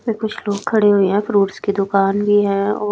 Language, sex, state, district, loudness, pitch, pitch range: Hindi, female, Chhattisgarh, Raipur, -17 LUFS, 205 Hz, 200-210 Hz